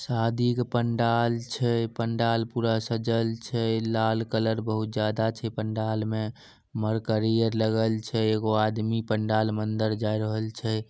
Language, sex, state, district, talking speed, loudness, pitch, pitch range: Maithili, male, Bihar, Samastipur, 150 wpm, -27 LUFS, 110 Hz, 110-115 Hz